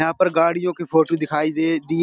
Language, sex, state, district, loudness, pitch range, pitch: Hindi, male, Uttar Pradesh, Budaun, -19 LUFS, 160-170 Hz, 165 Hz